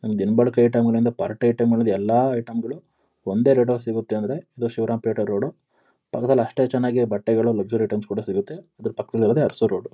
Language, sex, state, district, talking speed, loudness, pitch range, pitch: Kannada, male, Karnataka, Mysore, 185 wpm, -22 LUFS, 115-130 Hz, 120 Hz